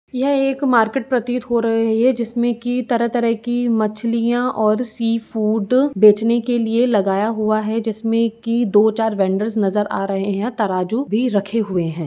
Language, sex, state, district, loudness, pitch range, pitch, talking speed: Hindi, female, Uttar Pradesh, Jyotiba Phule Nagar, -18 LUFS, 215-240 Hz, 230 Hz, 175 wpm